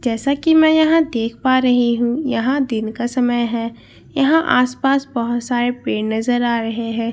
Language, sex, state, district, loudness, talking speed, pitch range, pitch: Hindi, female, Bihar, Katihar, -17 LUFS, 195 wpm, 230-275 Hz, 245 Hz